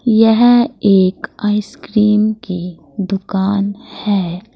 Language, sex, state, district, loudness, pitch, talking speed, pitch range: Hindi, female, Uttar Pradesh, Saharanpur, -15 LUFS, 205 Hz, 80 wpm, 190-220 Hz